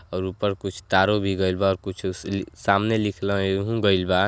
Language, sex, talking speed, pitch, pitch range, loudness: Bhojpuri, male, 195 wpm, 95 Hz, 95-100 Hz, -23 LUFS